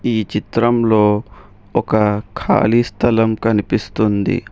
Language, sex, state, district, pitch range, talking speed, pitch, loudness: Telugu, male, Telangana, Hyderabad, 105-115 Hz, 80 wpm, 110 Hz, -16 LUFS